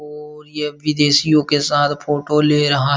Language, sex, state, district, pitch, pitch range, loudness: Hindi, male, Bihar, Supaul, 150 Hz, 145-150 Hz, -16 LUFS